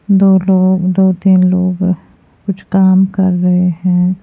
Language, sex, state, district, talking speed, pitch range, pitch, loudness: Hindi, female, Himachal Pradesh, Shimla, 140 wpm, 185-190 Hz, 185 Hz, -12 LUFS